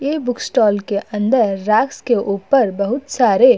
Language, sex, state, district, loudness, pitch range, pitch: Hindi, female, Uttar Pradesh, Budaun, -17 LUFS, 205-270 Hz, 225 Hz